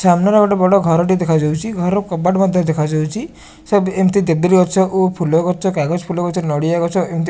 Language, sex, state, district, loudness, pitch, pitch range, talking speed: Odia, male, Odisha, Malkangiri, -15 LUFS, 180 Hz, 165-190 Hz, 195 wpm